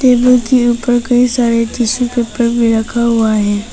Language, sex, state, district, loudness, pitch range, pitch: Hindi, female, Arunachal Pradesh, Papum Pare, -12 LUFS, 230-245 Hz, 240 Hz